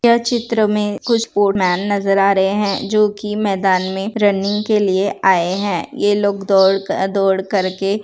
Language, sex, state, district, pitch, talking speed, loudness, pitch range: Hindi, female, Bihar, Saharsa, 200 Hz, 195 wpm, -16 LUFS, 195-210 Hz